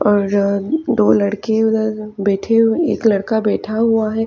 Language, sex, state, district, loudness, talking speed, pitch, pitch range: Hindi, female, Chhattisgarh, Raigarh, -16 LUFS, 155 wpm, 215 Hz, 205-225 Hz